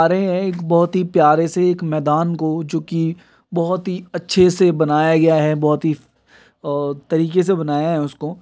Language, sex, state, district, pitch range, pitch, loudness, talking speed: Hindi, male, Bihar, Kishanganj, 155-180 Hz, 165 Hz, -17 LUFS, 190 wpm